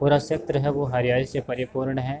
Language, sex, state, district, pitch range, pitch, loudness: Hindi, male, Uttar Pradesh, Varanasi, 125-145 Hz, 135 Hz, -25 LUFS